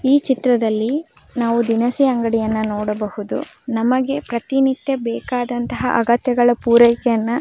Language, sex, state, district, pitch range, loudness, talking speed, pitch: Kannada, female, Karnataka, Belgaum, 230-255 Hz, -18 LUFS, 95 wpm, 240 Hz